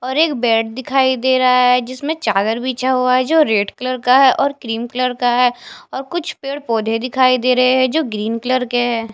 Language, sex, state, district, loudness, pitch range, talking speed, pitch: Hindi, female, Punjab, Fazilka, -16 LUFS, 245-265 Hz, 230 wpm, 255 Hz